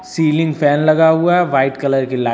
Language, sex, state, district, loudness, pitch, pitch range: Hindi, male, Uttar Pradesh, Lucknow, -14 LUFS, 155 Hz, 135-160 Hz